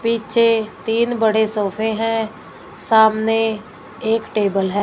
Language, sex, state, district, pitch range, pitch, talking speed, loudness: Hindi, female, Punjab, Fazilka, 215-225 Hz, 220 Hz, 110 wpm, -18 LUFS